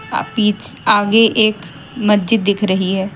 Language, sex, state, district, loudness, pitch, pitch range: Hindi, female, Haryana, Jhajjar, -15 LUFS, 205 Hz, 190-220 Hz